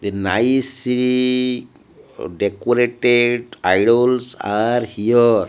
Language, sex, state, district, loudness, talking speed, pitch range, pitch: English, male, Odisha, Malkangiri, -17 LUFS, 65 wpm, 115-125 Hz, 120 Hz